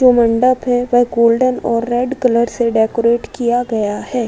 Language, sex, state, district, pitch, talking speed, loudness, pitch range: Hindi, female, Uttar Pradesh, Budaun, 240 Hz, 180 wpm, -15 LUFS, 230-245 Hz